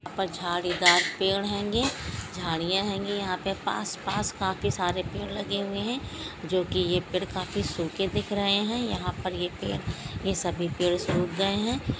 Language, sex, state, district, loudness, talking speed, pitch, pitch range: Hindi, female, Maharashtra, Pune, -28 LUFS, 160 wpm, 190 Hz, 180-200 Hz